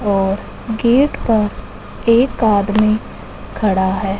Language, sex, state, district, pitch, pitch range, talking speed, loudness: Hindi, male, Punjab, Fazilka, 215 Hz, 200-230 Hz, 100 wpm, -16 LUFS